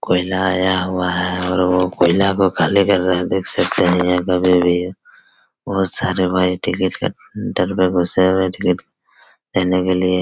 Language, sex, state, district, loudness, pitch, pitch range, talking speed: Hindi, male, Chhattisgarh, Raigarh, -17 LUFS, 90 Hz, 90-95 Hz, 195 wpm